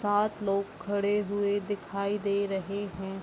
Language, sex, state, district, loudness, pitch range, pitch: Hindi, female, Bihar, Bhagalpur, -30 LUFS, 200-205 Hz, 200 Hz